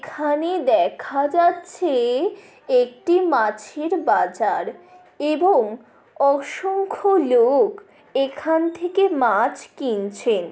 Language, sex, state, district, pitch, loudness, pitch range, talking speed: Bengali, female, West Bengal, Paschim Medinipur, 350 Hz, -20 LUFS, 290-390 Hz, 75 wpm